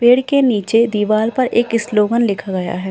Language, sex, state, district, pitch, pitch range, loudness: Hindi, female, Uttarakhand, Uttarkashi, 225 Hz, 205-235 Hz, -16 LUFS